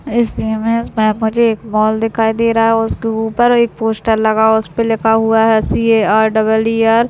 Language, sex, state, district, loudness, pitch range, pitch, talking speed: Hindi, female, Chhattisgarh, Raigarh, -14 LUFS, 220-230 Hz, 225 Hz, 230 wpm